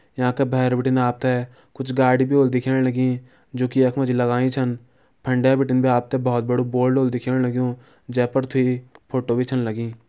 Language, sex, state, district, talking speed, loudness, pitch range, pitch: Garhwali, male, Uttarakhand, Uttarkashi, 190 wpm, -21 LUFS, 125-130 Hz, 125 Hz